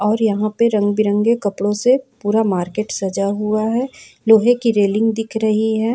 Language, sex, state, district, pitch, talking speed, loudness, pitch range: Hindi, female, Jharkhand, Ranchi, 215 Hz, 180 wpm, -17 LUFS, 205-225 Hz